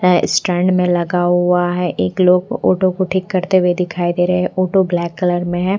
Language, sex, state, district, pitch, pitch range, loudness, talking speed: Hindi, female, Bihar, Katihar, 180 Hz, 175-185 Hz, -16 LUFS, 230 wpm